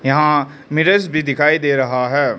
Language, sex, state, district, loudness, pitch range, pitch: Hindi, male, Arunachal Pradesh, Lower Dibang Valley, -16 LUFS, 140-155 Hz, 145 Hz